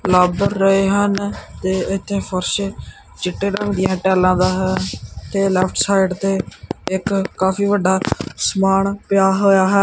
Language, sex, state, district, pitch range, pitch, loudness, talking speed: Punjabi, male, Punjab, Kapurthala, 185-200 Hz, 195 Hz, -18 LUFS, 140 wpm